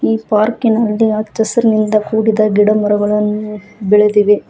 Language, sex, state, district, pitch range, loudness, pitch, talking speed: Kannada, female, Karnataka, Bangalore, 210-220 Hz, -13 LUFS, 215 Hz, 95 wpm